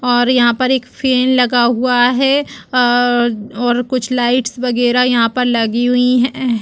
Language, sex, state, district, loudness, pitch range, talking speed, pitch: Hindi, female, Chhattisgarh, Bastar, -14 LUFS, 240-255 Hz, 165 wpm, 245 Hz